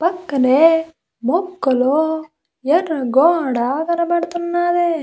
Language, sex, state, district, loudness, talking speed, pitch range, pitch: Telugu, female, Andhra Pradesh, Visakhapatnam, -17 LUFS, 60 wpm, 270-345 Hz, 325 Hz